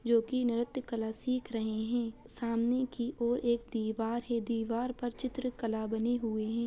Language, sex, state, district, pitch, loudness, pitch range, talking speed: Bajjika, female, Bihar, Vaishali, 235 Hz, -34 LUFS, 225-245 Hz, 170 wpm